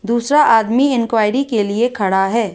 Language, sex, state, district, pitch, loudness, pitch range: Hindi, female, Rajasthan, Jaipur, 230 Hz, -15 LUFS, 215-245 Hz